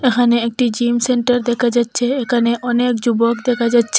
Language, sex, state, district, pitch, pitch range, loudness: Bengali, female, Assam, Hailakandi, 240 Hz, 235-245 Hz, -16 LUFS